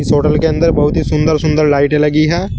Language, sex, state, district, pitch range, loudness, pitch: Hindi, male, Uttar Pradesh, Saharanpur, 150-160 Hz, -12 LUFS, 155 Hz